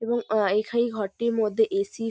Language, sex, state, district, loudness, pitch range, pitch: Bengali, female, West Bengal, North 24 Parganas, -25 LUFS, 205-235 Hz, 220 Hz